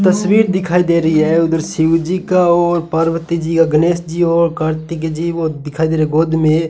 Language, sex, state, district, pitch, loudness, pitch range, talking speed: Hindi, male, Rajasthan, Bikaner, 165 Hz, -15 LUFS, 160-175 Hz, 215 wpm